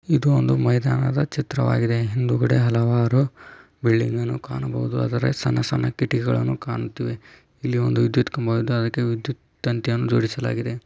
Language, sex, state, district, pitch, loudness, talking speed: Kannada, male, Karnataka, Belgaum, 115 Hz, -22 LUFS, 135 wpm